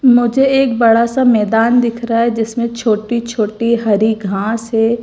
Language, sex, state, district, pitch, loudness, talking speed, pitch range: Hindi, female, Gujarat, Gandhinagar, 230 Hz, -14 LUFS, 165 wpm, 225-240 Hz